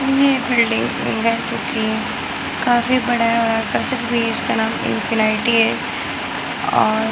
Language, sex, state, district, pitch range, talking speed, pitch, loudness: Hindi, female, Bihar, Muzaffarpur, 225-245 Hz, 160 wpm, 230 Hz, -18 LUFS